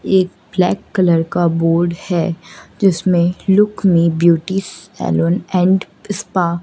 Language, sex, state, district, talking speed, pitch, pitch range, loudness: Hindi, female, Madhya Pradesh, Katni, 125 wpm, 180 Hz, 170-190 Hz, -16 LUFS